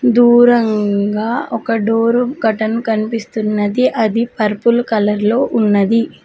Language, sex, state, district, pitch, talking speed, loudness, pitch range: Telugu, female, Telangana, Mahabubabad, 225 Hz, 95 wpm, -14 LUFS, 215-240 Hz